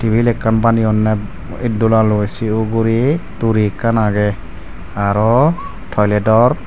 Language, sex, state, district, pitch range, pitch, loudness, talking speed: Chakma, male, Tripura, Dhalai, 105-115 Hz, 110 Hz, -15 LUFS, 100 wpm